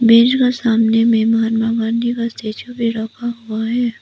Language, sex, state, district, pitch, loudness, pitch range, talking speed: Hindi, female, Arunachal Pradesh, Papum Pare, 230 Hz, -16 LUFS, 225-235 Hz, 180 wpm